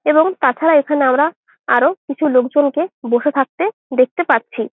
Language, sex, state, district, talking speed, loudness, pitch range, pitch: Bengali, female, West Bengal, Jalpaiguri, 140 wpm, -16 LUFS, 265-320 Hz, 295 Hz